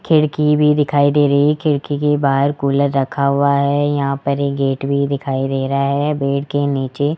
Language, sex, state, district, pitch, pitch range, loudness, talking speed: Hindi, female, Rajasthan, Jaipur, 140 Hz, 140-145 Hz, -16 LUFS, 215 wpm